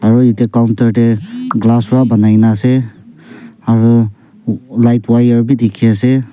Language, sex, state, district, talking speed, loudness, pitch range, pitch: Nagamese, male, Nagaland, Kohima, 125 wpm, -11 LUFS, 115-125 Hz, 115 Hz